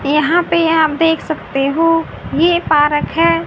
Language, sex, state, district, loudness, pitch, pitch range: Hindi, female, Haryana, Rohtak, -14 LUFS, 325 Hz, 300-330 Hz